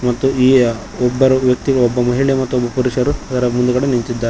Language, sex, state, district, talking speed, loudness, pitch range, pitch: Kannada, male, Karnataka, Koppal, 155 wpm, -15 LUFS, 120-130 Hz, 125 Hz